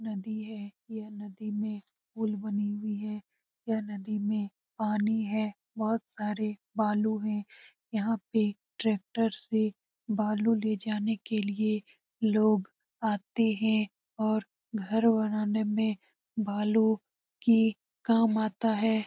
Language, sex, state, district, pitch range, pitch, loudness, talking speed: Hindi, female, Bihar, Lakhisarai, 210-220 Hz, 215 Hz, -30 LUFS, 125 wpm